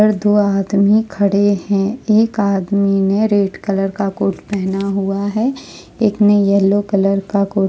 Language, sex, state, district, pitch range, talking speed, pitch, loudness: Hindi, female, Jharkhand, Ranchi, 195-205 Hz, 165 wpm, 200 Hz, -16 LUFS